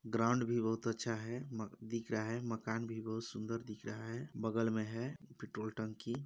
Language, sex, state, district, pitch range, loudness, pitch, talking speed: Hindi, male, Chhattisgarh, Balrampur, 110-115 Hz, -40 LUFS, 115 Hz, 200 wpm